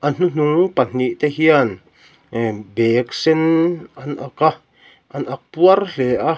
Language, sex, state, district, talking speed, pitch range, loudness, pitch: Mizo, male, Mizoram, Aizawl, 140 wpm, 125-165 Hz, -17 LUFS, 150 Hz